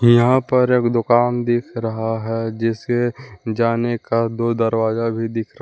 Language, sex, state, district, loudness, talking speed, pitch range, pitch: Hindi, male, Jharkhand, Palamu, -19 LUFS, 160 wpm, 115-120 Hz, 115 Hz